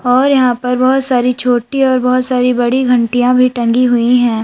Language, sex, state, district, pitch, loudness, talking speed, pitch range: Hindi, female, Uttar Pradesh, Lalitpur, 250 Hz, -12 LUFS, 200 wpm, 245-255 Hz